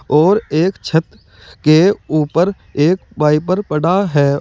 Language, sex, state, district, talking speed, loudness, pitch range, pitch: Hindi, male, Uttar Pradesh, Saharanpur, 120 wpm, -15 LUFS, 150-180 Hz, 155 Hz